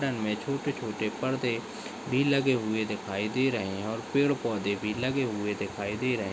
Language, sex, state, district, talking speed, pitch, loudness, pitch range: Hindi, male, Chhattisgarh, Balrampur, 200 wpm, 115 Hz, -30 LUFS, 105-130 Hz